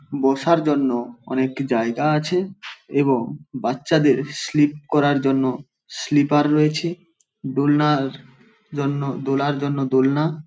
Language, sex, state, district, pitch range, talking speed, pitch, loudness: Bengali, male, West Bengal, Paschim Medinipur, 135-150 Hz, 105 wpm, 145 Hz, -20 LUFS